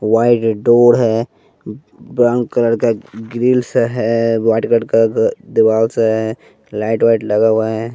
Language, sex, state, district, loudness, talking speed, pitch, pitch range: Hindi, male, Bihar, West Champaran, -14 LUFS, 145 wpm, 115 Hz, 110-120 Hz